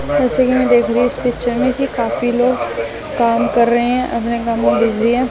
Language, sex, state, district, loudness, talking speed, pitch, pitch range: Hindi, female, Delhi, New Delhi, -16 LUFS, 240 wpm, 235 Hz, 225-250 Hz